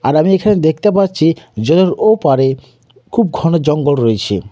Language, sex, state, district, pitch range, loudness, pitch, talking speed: Bengali, male, West Bengal, Jhargram, 135-190 Hz, -13 LUFS, 160 Hz, 145 wpm